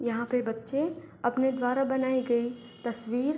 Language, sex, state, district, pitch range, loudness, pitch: Hindi, female, Bihar, Begusarai, 235-265 Hz, -30 LUFS, 245 Hz